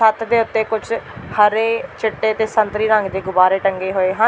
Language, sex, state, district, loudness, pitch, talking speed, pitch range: Punjabi, female, Delhi, New Delhi, -18 LUFS, 215 Hz, 195 wpm, 195-220 Hz